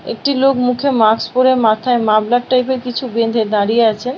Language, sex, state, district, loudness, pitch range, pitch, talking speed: Bengali, female, West Bengal, Paschim Medinipur, -14 LUFS, 225-255 Hz, 245 Hz, 200 wpm